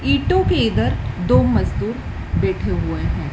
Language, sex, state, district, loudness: Hindi, female, Madhya Pradesh, Dhar, -19 LUFS